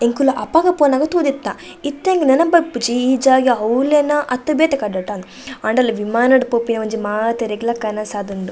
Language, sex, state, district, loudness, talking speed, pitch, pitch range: Tulu, female, Karnataka, Dakshina Kannada, -17 LUFS, 175 wpm, 250 Hz, 220-290 Hz